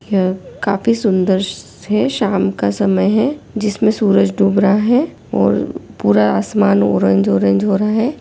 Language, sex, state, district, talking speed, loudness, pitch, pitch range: Hindi, female, Bihar, Gopalganj, 155 wpm, -15 LUFS, 200 Hz, 175-215 Hz